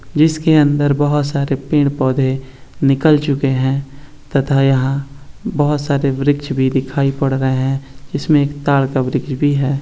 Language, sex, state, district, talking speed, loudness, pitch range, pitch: Hindi, male, Bihar, East Champaran, 155 wpm, -16 LUFS, 135-145 Hz, 140 Hz